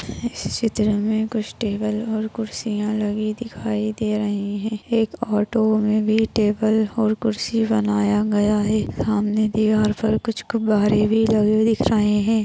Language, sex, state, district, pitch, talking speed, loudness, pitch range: Hindi, female, Maharashtra, Dhule, 215 Hz, 155 wpm, -21 LUFS, 210-220 Hz